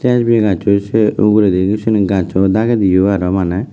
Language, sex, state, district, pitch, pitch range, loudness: Chakma, male, Tripura, West Tripura, 100 Hz, 95-110 Hz, -13 LUFS